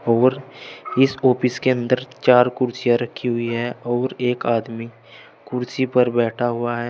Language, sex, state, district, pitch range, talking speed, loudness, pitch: Hindi, male, Uttar Pradesh, Saharanpur, 120-125 Hz, 155 wpm, -20 LUFS, 120 Hz